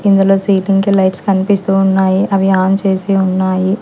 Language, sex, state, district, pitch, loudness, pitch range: Telugu, female, Telangana, Hyderabad, 195 Hz, -12 LUFS, 190-195 Hz